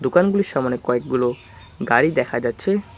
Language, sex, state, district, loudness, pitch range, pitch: Bengali, male, West Bengal, Cooch Behar, -20 LUFS, 120-175 Hz, 125 Hz